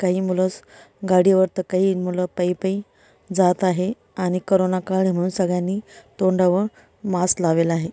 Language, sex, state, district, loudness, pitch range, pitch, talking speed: Marathi, female, Maharashtra, Dhule, -21 LUFS, 180-190 Hz, 185 Hz, 145 wpm